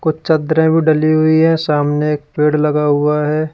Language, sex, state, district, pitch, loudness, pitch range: Hindi, male, Uttar Pradesh, Lalitpur, 155 Hz, -14 LUFS, 150-160 Hz